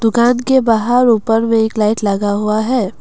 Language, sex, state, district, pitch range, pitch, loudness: Hindi, female, Assam, Kamrup Metropolitan, 210-240 Hz, 225 Hz, -14 LUFS